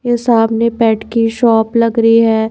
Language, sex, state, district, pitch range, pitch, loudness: Hindi, female, Haryana, Charkhi Dadri, 225-230 Hz, 230 Hz, -12 LUFS